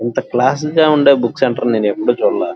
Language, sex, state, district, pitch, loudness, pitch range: Telugu, male, Andhra Pradesh, Krishna, 135 Hz, -14 LUFS, 120-155 Hz